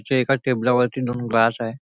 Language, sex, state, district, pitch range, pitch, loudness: Marathi, male, Maharashtra, Nagpur, 115-130 Hz, 125 Hz, -20 LUFS